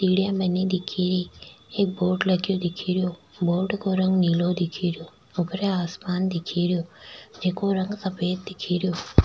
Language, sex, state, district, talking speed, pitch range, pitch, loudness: Rajasthani, female, Rajasthan, Nagaur, 125 wpm, 175-190 Hz, 185 Hz, -25 LUFS